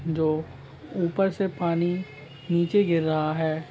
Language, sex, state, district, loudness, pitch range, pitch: Hindi, male, Maharashtra, Nagpur, -25 LUFS, 155-175 Hz, 160 Hz